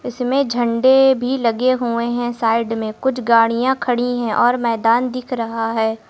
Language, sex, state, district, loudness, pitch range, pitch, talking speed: Hindi, male, Uttar Pradesh, Lucknow, -17 LUFS, 230-255 Hz, 240 Hz, 165 wpm